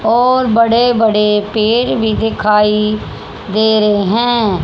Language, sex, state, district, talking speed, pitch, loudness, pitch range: Hindi, female, Haryana, Charkhi Dadri, 115 wpm, 220 Hz, -13 LUFS, 210-230 Hz